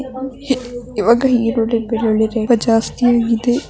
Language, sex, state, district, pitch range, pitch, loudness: Kannada, male, Karnataka, Mysore, 225-250 Hz, 235 Hz, -16 LUFS